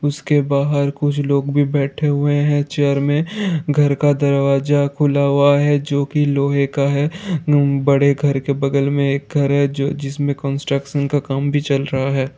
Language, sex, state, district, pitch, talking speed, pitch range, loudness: Hindi, male, Bihar, Jahanabad, 140 Hz, 180 wpm, 140-145 Hz, -17 LUFS